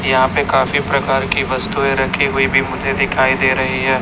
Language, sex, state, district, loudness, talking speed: Hindi, male, Chhattisgarh, Raipur, -15 LUFS, 210 wpm